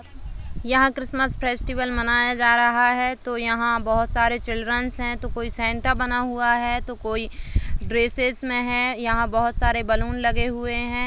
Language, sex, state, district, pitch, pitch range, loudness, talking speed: Hindi, female, Uttar Pradesh, Jalaun, 240 Hz, 235-245 Hz, -22 LUFS, 170 wpm